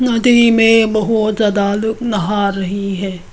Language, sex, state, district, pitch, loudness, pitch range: Hindi, female, Arunachal Pradesh, Lower Dibang Valley, 215 Hz, -14 LUFS, 200-225 Hz